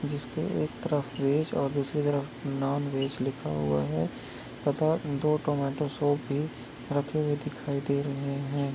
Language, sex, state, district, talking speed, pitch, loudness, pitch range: Hindi, male, Chhattisgarh, Bastar, 165 wpm, 140 Hz, -30 LUFS, 135-145 Hz